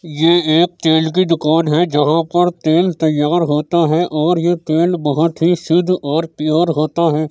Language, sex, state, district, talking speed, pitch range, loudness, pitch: Hindi, male, Uttar Pradesh, Jyotiba Phule Nagar, 180 wpm, 155-175 Hz, -15 LUFS, 165 Hz